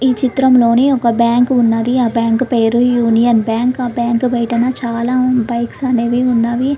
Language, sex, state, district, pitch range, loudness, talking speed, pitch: Telugu, female, Andhra Pradesh, Krishna, 235-250 Hz, -14 LUFS, 150 wpm, 240 Hz